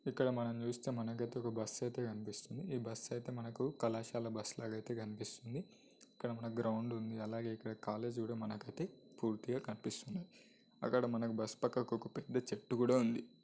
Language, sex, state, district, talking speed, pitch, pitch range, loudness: Telugu, male, Telangana, Karimnagar, 175 wpm, 115 Hz, 110-125 Hz, -41 LUFS